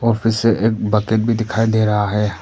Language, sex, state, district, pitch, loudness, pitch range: Hindi, male, Arunachal Pradesh, Papum Pare, 110 Hz, -17 LUFS, 105-115 Hz